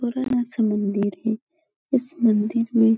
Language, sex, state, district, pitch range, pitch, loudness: Hindi, female, Uttar Pradesh, Etah, 220-250 Hz, 230 Hz, -23 LUFS